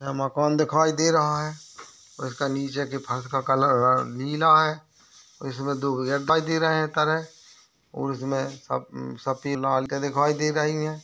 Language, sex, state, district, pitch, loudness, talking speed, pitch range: Hindi, male, Maharashtra, Aurangabad, 140 Hz, -24 LUFS, 135 wpm, 135-155 Hz